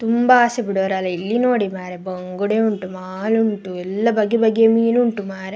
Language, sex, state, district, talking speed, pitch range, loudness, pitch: Kannada, female, Karnataka, Dakshina Kannada, 170 wpm, 190-230 Hz, -18 LUFS, 210 Hz